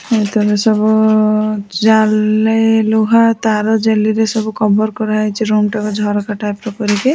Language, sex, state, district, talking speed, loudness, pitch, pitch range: Odia, female, Odisha, Sambalpur, 150 wpm, -14 LUFS, 215 Hz, 210-220 Hz